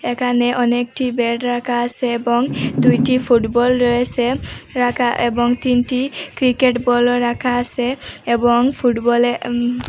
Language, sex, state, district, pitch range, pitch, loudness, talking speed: Bengali, female, Assam, Hailakandi, 240-250 Hz, 245 Hz, -17 LUFS, 115 wpm